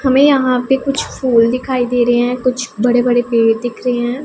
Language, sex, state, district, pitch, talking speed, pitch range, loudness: Hindi, female, Punjab, Pathankot, 245 Hz, 225 wpm, 240-260 Hz, -14 LUFS